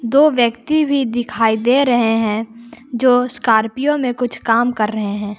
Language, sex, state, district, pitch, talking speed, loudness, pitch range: Hindi, female, Jharkhand, Palamu, 240 Hz, 165 wpm, -16 LUFS, 225-255 Hz